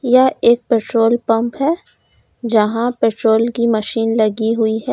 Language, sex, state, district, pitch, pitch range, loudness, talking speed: Hindi, female, Uttar Pradesh, Lalitpur, 230 Hz, 225-240 Hz, -16 LUFS, 145 wpm